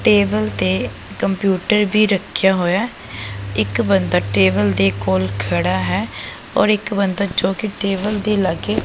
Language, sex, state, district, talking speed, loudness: Punjabi, female, Punjab, Pathankot, 155 wpm, -18 LUFS